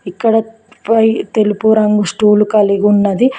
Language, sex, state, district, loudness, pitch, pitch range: Telugu, female, Telangana, Mahabubabad, -12 LUFS, 215 Hz, 205-225 Hz